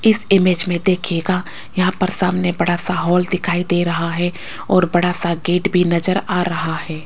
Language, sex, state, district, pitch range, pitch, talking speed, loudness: Hindi, female, Rajasthan, Jaipur, 175-185 Hz, 180 Hz, 195 wpm, -18 LUFS